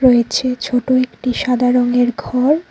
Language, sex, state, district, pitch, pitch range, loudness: Bengali, female, Tripura, Unakoti, 250 Hz, 245-255 Hz, -16 LUFS